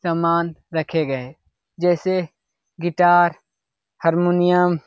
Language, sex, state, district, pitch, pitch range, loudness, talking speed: Hindi, male, Bihar, Lakhisarai, 170 Hz, 165-175 Hz, -20 LUFS, 100 wpm